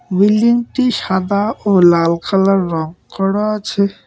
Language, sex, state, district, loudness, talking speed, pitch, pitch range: Bengali, male, West Bengal, Cooch Behar, -15 LUFS, 120 wpm, 200 Hz, 185-210 Hz